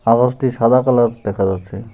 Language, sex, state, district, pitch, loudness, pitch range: Bengali, male, West Bengal, Alipurduar, 115 Hz, -16 LUFS, 100-125 Hz